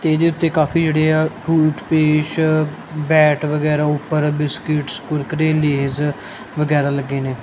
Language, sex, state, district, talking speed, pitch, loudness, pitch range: Punjabi, male, Punjab, Kapurthala, 130 wpm, 150 Hz, -18 LUFS, 150-155 Hz